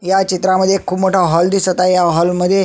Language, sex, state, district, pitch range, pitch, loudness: Marathi, male, Maharashtra, Sindhudurg, 180-190 Hz, 185 Hz, -14 LUFS